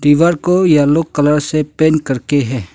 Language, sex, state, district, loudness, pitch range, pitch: Hindi, male, Arunachal Pradesh, Longding, -13 LUFS, 145-155 Hz, 150 Hz